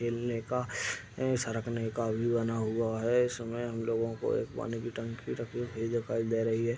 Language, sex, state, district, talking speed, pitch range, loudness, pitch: Hindi, male, Uttar Pradesh, Deoria, 205 wpm, 115-120 Hz, -33 LUFS, 115 Hz